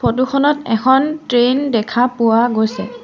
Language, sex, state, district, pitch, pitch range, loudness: Assamese, female, Assam, Sonitpur, 245 Hz, 225-265 Hz, -15 LUFS